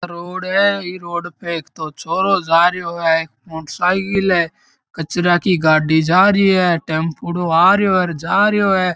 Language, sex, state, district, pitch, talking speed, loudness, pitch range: Marwari, male, Rajasthan, Churu, 175 Hz, 140 wpm, -16 LUFS, 165-190 Hz